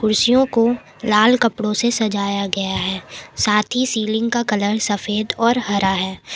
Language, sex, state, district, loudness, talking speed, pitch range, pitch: Hindi, female, Jharkhand, Palamu, -18 LUFS, 160 wpm, 200-235 Hz, 215 Hz